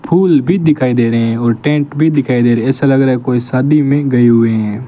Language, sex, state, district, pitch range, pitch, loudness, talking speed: Hindi, male, Rajasthan, Bikaner, 120-145 Hz, 130 Hz, -12 LUFS, 270 wpm